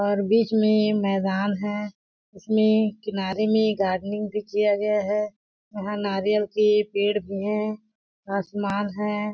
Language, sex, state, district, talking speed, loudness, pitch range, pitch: Hindi, female, Chhattisgarh, Balrampur, 135 wpm, -24 LUFS, 200-215 Hz, 210 Hz